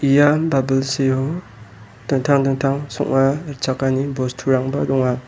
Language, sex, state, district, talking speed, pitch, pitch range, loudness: Garo, male, Meghalaya, West Garo Hills, 90 wpm, 135 Hz, 130-140 Hz, -19 LUFS